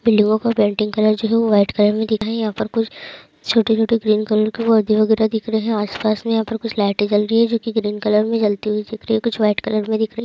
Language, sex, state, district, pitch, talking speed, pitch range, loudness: Hindi, female, Andhra Pradesh, Anantapur, 220 Hz, 300 wpm, 210-225 Hz, -18 LUFS